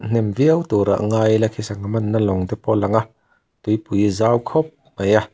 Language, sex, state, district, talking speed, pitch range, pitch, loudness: Mizo, male, Mizoram, Aizawl, 200 wpm, 105-115 Hz, 110 Hz, -19 LUFS